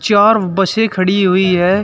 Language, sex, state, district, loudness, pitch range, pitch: Hindi, male, Uttar Pradesh, Shamli, -13 LUFS, 185-210 Hz, 195 Hz